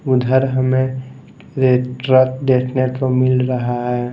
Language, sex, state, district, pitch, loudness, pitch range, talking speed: Hindi, male, Maharashtra, Mumbai Suburban, 130 Hz, -16 LUFS, 125-130 Hz, 130 wpm